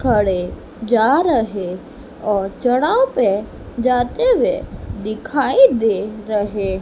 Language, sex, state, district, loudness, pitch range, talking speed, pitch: Hindi, female, Madhya Pradesh, Dhar, -18 LUFS, 205-270 Hz, 95 wpm, 225 Hz